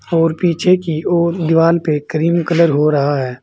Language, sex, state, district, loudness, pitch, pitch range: Hindi, male, Uttar Pradesh, Saharanpur, -15 LUFS, 165 Hz, 150-170 Hz